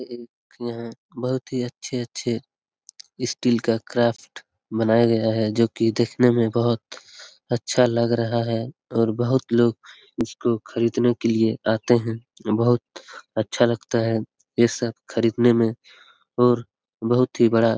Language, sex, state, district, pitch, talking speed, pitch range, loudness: Hindi, male, Bihar, Lakhisarai, 115 Hz, 145 wpm, 115-120 Hz, -22 LUFS